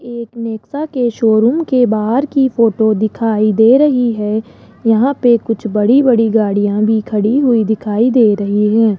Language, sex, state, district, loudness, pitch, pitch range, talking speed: Hindi, male, Rajasthan, Jaipur, -13 LUFS, 225 Hz, 215-245 Hz, 165 wpm